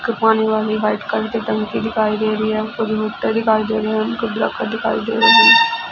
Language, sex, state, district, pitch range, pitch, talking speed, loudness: Punjabi, female, Punjab, Fazilka, 215-225 Hz, 220 Hz, 215 wpm, -16 LUFS